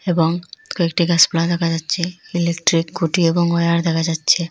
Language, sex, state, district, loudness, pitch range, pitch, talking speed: Bengali, female, Assam, Hailakandi, -18 LUFS, 165-175 Hz, 170 Hz, 145 wpm